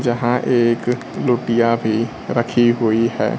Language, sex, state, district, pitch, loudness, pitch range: Hindi, male, Bihar, Kaimur, 120 Hz, -18 LUFS, 115-120 Hz